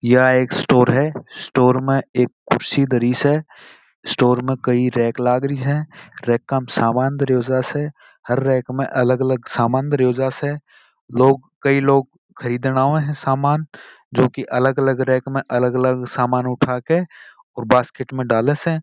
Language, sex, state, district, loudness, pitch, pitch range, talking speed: Marwari, male, Rajasthan, Churu, -18 LUFS, 130 Hz, 125-140 Hz, 160 wpm